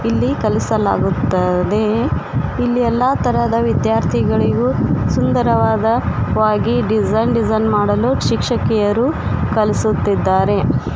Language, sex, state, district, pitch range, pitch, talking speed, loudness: Kannada, female, Karnataka, Koppal, 210-230 Hz, 220 Hz, 65 wpm, -16 LUFS